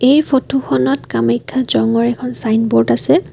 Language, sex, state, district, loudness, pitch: Assamese, female, Assam, Kamrup Metropolitan, -15 LUFS, 230 Hz